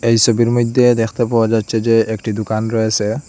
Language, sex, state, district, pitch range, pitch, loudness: Bengali, male, Assam, Hailakandi, 110-115 Hz, 115 Hz, -15 LUFS